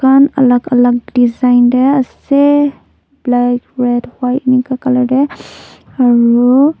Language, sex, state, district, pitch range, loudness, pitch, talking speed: Nagamese, female, Nagaland, Dimapur, 245-270 Hz, -11 LUFS, 255 Hz, 115 wpm